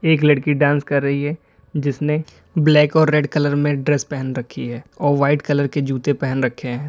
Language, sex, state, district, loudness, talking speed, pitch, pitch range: Hindi, male, Uttar Pradesh, Lalitpur, -19 LUFS, 210 wpm, 145 Hz, 140-150 Hz